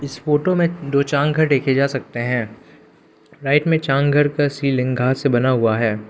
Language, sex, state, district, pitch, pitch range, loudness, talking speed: Hindi, male, Arunachal Pradesh, Lower Dibang Valley, 140 Hz, 125-150 Hz, -18 LUFS, 165 wpm